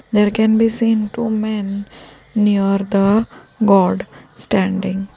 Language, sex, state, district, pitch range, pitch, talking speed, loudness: English, female, Gujarat, Valsad, 195-220 Hz, 210 Hz, 115 wpm, -17 LUFS